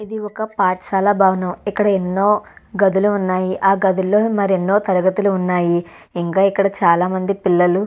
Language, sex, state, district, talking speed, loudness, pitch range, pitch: Telugu, female, Andhra Pradesh, Chittoor, 145 wpm, -17 LUFS, 185-205 Hz, 195 Hz